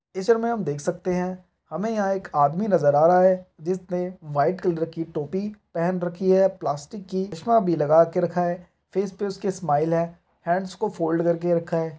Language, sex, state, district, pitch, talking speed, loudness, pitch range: Hindi, male, Chhattisgarh, Raigarh, 180 Hz, 205 wpm, -24 LUFS, 165-190 Hz